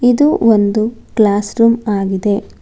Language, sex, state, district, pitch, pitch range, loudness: Kannada, female, Karnataka, Bangalore, 215 Hz, 205-230 Hz, -14 LUFS